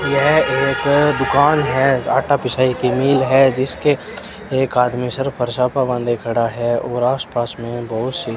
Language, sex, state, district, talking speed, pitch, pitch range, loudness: Hindi, male, Rajasthan, Bikaner, 165 wpm, 130 Hz, 120-135 Hz, -17 LUFS